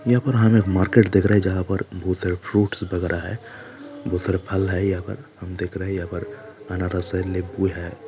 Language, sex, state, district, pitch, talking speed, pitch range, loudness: Hindi, male, Jharkhand, Jamtara, 95 Hz, 230 wpm, 90-105 Hz, -22 LUFS